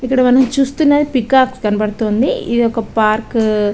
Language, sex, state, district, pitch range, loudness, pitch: Telugu, female, Telangana, Karimnagar, 215-260 Hz, -14 LUFS, 235 Hz